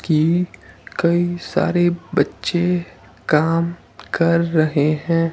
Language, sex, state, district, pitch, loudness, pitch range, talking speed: Hindi, male, Himachal Pradesh, Shimla, 170 Hz, -19 LUFS, 160-175 Hz, 90 wpm